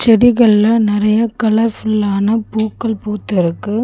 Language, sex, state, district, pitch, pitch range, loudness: Tamil, female, Tamil Nadu, Chennai, 220 Hz, 210-225 Hz, -14 LUFS